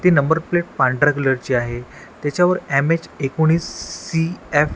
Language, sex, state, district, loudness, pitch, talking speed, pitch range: Marathi, male, Maharashtra, Washim, -19 LUFS, 155 Hz, 150 wpm, 135-170 Hz